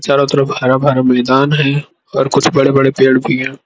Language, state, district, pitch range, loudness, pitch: Hindi, Arunachal Pradesh, Lower Dibang Valley, 130-140 Hz, -12 LUFS, 135 Hz